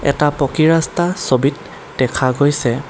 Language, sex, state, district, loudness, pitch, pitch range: Assamese, male, Assam, Kamrup Metropolitan, -16 LUFS, 145 Hz, 140-160 Hz